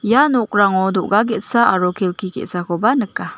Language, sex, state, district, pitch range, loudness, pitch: Garo, female, Meghalaya, West Garo Hills, 185-235 Hz, -17 LUFS, 200 Hz